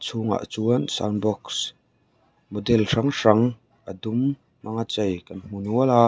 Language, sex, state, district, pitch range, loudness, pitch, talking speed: Mizo, male, Mizoram, Aizawl, 105-120 Hz, -24 LUFS, 110 Hz, 160 wpm